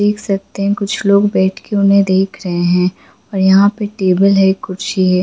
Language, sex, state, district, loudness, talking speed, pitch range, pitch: Hindi, female, Jharkhand, Jamtara, -14 LUFS, 205 wpm, 185-200 Hz, 195 Hz